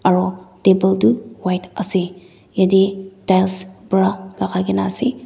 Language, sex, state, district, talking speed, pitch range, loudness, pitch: Nagamese, female, Nagaland, Dimapur, 135 wpm, 185-195 Hz, -18 LUFS, 190 Hz